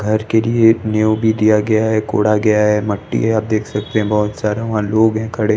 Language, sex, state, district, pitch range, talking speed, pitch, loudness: Hindi, male, Odisha, Sambalpur, 105-110 Hz, 250 wpm, 110 Hz, -15 LUFS